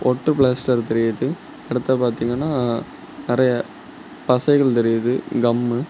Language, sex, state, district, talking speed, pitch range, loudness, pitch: Tamil, male, Tamil Nadu, Kanyakumari, 100 wpm, 120-130 Hz, -20 LUFS, 125 Hz